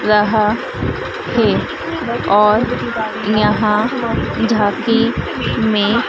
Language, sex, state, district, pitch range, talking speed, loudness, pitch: Hindi, female, Madhya Pradesh, Dhar, 210-230 Hz, 60 wpm, -16 LUFS, 215 Hz